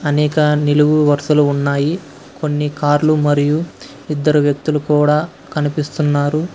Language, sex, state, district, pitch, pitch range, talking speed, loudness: Telugu, male, Karnataka, Bangalore, 150 Hz, 145-150 Hz, 100 wpm, -16 LUFS